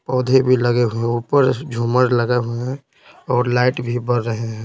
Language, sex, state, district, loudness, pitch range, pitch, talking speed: Hindi, male, Bihar, Patna, -18 LUFS, 120-130 Hz, 125 Hz, 205 wpm